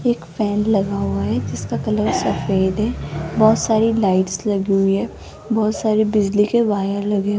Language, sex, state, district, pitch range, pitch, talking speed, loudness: Hindi, female, Rajasthan, Jaipur, 195-220 Hz, 205 Hz, 180 wpm, -19 LUFS